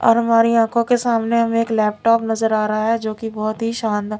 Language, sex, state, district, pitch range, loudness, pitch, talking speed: Hindi, female, Bihar, Patna, 215-230 Hz, -18 LUFS, 225 Hz, 245 wpm